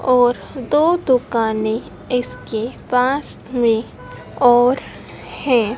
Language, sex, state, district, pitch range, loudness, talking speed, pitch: Hindi, female, Madhya Pradesh, Dhar, 230-260 Hz, -18 LUFS, 85 wpm, 245 Hz